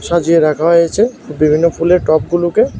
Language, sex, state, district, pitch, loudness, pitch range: Bengali, male, Tripura, West Tripura, 170 Hz, -13 LUFS, 155-175 Hz